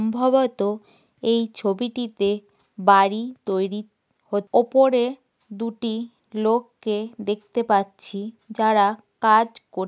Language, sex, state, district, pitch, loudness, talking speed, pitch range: Bengali, female, West Bengal, North 24 Parganas, 220 Hz, -22 LUFS, 85 wpm, 205-235 Hz